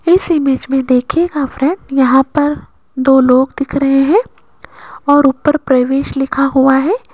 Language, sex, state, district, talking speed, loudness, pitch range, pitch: Hindi, female, Rajasthan, Jaipur, 150 wpm, -12 LUFS, 265-300 Hz, 275 Hz